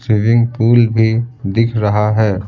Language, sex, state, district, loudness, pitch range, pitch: Hindi, male, Bihar, Patna, -14 LUFS, 105-115 Hz, 110 Hz